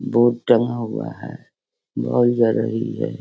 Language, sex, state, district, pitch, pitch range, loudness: Hindi, female, Bihar, Sitamarhi, 120 Hz, 115-120 Hz, -20 LUFS